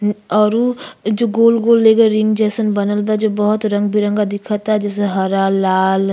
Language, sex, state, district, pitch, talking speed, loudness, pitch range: Bhojpuri, female, Uttar Pradesh, Ghazipur, 210 Hz, 175 wpm, -15 LUFS, 205-220 Hz